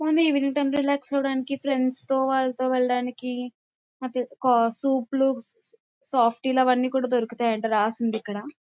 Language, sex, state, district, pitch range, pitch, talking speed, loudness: Telugu, female, Andhra Pradesh, Visakhapatnam, 245-275 Hz, 255 Hz, 105 wpm, -24 LUFS